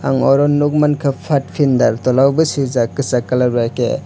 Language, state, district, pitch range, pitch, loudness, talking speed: Kokborok, Tripura, West Tripura, 125-145 Hz, 135 Hz, -15 LUFS, 175 wpm